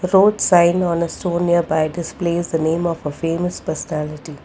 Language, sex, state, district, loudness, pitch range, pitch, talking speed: English, female, Karnataka, Bangalore, -19 LUFS, 160-175 Hz, 170 Hz, 175 wpm